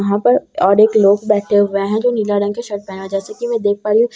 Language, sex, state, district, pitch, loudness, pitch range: Hindi, female, Bihar, Katihar, 205 Hz, -15 LUFS, 200-215 Hz